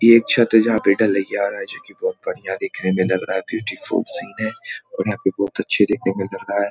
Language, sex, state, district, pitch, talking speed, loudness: Hindi, male, Bihar, Muzaffarpur, 110 Hz, 295 wpm, -20 LUFS